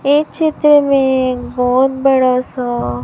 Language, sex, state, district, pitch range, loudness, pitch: Hindi, male, Chhattisgarh, Raipur, 250-280 Hz, -14 LUFS, 260 Hz